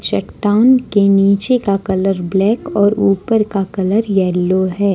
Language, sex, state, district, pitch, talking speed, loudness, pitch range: Hindi, female, Jharkhand, Ranchi, 200 Hz, 145 wpm, -14 LUFS, 190-210 Hz